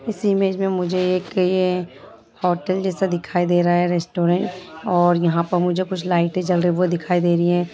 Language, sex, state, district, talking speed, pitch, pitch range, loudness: Hindi, female, Bihar, Purnia, 210 wpm, 180 Hz, 175-185 Hz, -20 LUFS